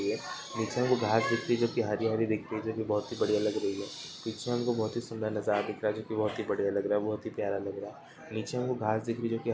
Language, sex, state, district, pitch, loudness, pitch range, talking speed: Hindi, male, Chhattisgarh, Korba, 110 Hz, -32 LUFS, 105-115 Hz, 325 wpm